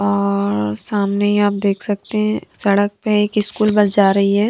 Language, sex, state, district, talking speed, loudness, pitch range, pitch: Hindi, female, Punjab, Kapurthala, 185 wpm, -17 LUFS, 200-210 Hz, 205 Hz